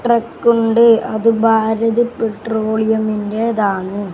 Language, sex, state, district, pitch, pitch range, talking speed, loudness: Malayalam, male, Kerala, Kasaragod, 225 Hz, 215-230 Hz, 70 wpm, -15 LUFS